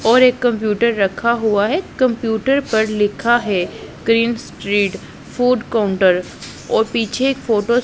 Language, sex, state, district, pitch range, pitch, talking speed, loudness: Hindi, female, Punjab, Pathankot, 205-240 Hz, 225 Hz, 145 wpm, -17 LUFS